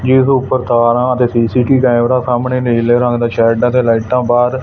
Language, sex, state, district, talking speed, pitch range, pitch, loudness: Punjabi, male, Punjab, Fazilka, 205 wpm, 120-125 Hz, 125 Hz, -12 LUFS